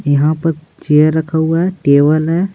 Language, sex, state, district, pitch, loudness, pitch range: Hindi, male, Bihar, Patna, 160 Hz, -13 LUFS, 150-165 Hz